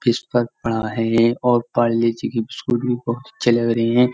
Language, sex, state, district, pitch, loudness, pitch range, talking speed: Hindi, male, Uttar Pradesh, Jyotiba Phule Nagar, 120 Hz, -20 LUFS, 115-120 Hz, 200 wpm